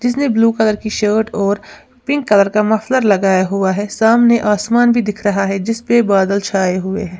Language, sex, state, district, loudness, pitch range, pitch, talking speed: Hindi, female, Uttar Pradesh, Lalitpur, -14 LUFS, 200-230 Hz, 210 Hz, 200 wpm